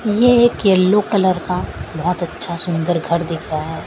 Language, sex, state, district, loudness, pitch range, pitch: Hindi, female, Maharashtra, Mumbai Suburban, -17 LUFS, 170-200 Hz, 180 Hz